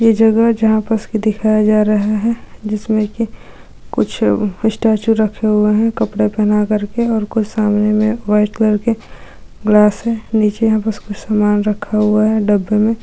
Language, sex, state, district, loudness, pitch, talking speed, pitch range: Hindi, female, Chhattisgarh, Bastar, -15 LUFS, 215 Hz, 175 wpm, 210-220 Hz